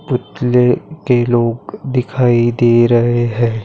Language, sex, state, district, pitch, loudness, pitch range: Hindi, male, Maharashtra, Pune, 120 Hz, -14 LUFS, 120-125 Hz